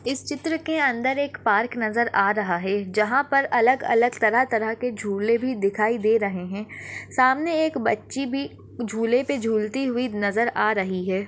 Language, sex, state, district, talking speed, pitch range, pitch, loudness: Hindi, female, Maharashtra, Pune, 185 wpm, 215-265 Hz, 235 Hz, -23 LUFS